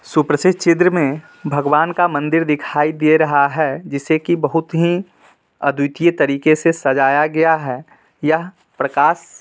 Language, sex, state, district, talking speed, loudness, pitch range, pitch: Hindi, male, Bihar, Muzaffarpur, 140 wpm, -16 LUFS, 145-170 Hz, 155 Hz